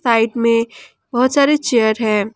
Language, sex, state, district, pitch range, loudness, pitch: Hindi, female, Jharkhand, Ranchi, 225-255 Hz, -16 LUFS, 230 Hz